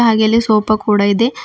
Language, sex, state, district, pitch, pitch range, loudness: Kannada, female, Karnataka, Bidar, 220 Hz, 210-230 Hz, -13 LUFS